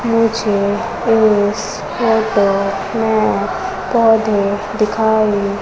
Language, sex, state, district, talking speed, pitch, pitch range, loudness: Hindi, female, Madhya Pradesh, Umaria, 65 wpm, 215 Hz, 205-225 Hz, -15 LUFS